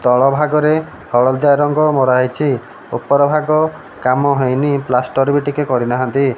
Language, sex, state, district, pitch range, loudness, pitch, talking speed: Odia, male, Odisha, Malkangiri, 125-150 Hz, -15 LUFS, 135 Hz, 120 wpm